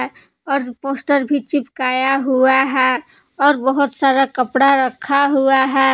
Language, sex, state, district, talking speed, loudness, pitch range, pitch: Hindi, female, Jharkhand, Palamu, 130 wpm, -16 LUFS, 260-280 Hz, 270 Hz